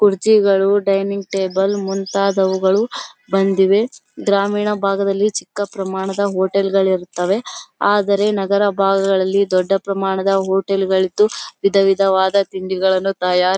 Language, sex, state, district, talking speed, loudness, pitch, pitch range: Kannada, female, Karnataka, Bellary, 100 wpm, -17 LUFS, 195 Hz, 190-200 Hz